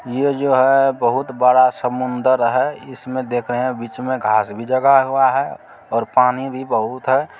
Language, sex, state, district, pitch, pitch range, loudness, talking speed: Maithili, male, Bihar, Supaul, 130 Hz, 125-130 Hz, -17 LUFS, 185 wpm